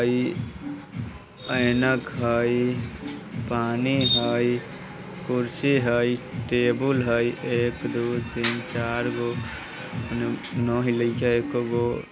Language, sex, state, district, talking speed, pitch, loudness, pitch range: Bajjika, male, Bihar, Vaishali, 90 wpm, 120 Hz, -25 LUFS, 120-125 Hz